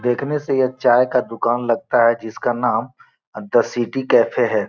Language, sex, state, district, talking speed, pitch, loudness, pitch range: Hindi, male, Bihar, Gopalganj, 180 wpm, 120 Hz, -18 LUFS, 115-130 Hz